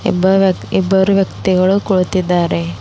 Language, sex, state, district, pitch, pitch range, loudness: Kannada, female, Karnataka, Bidar, 185 Hz, 180-190 Hz, -14 LUFS